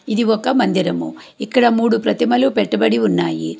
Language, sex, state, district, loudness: Telugu, female, Telangana, Hyderabad, -16 LUFS